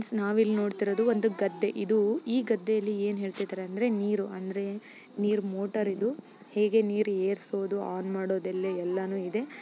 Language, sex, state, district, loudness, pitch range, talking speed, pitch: Kannada, female, Karnataka, Mysore, -30 LUFS, 195-215 Hz, 110 wpm, 205 Hz